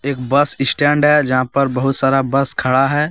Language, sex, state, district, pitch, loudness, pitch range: Hindi, male, Jharkhand, Deoghar, 135 Hz, -15 LUFS, 135-145 Hz